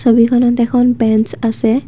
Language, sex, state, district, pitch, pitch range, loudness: Assamese, female, Assam, Kamrup Metropolitan, 235 Hz, 225-245 Hz, -12 LUFS